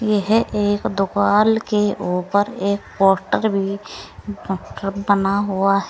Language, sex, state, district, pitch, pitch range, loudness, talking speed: Hindi, female, Uttar Pradesh, Saharanpur, 200 Hz, 195-210 Hz, -19 LUFS, 110 wpm